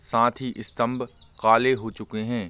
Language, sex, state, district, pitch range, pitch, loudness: Hindi, male, Bihar, Vaishali, 110-125 Hz, 115 Hz, -24 LUFS